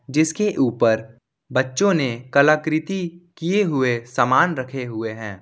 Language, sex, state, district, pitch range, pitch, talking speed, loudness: Hindi, male, Jharkhand, Ranchi, 120-165 Hz, 135 Hz, 120 wpm, -20 LUFS